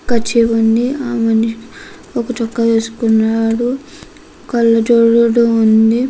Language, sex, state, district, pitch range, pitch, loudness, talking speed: Telugu, female, Andhra Pradesh, Krishna, 225-240 Hz, 230 Hz, -14 LUFS, 90 wpm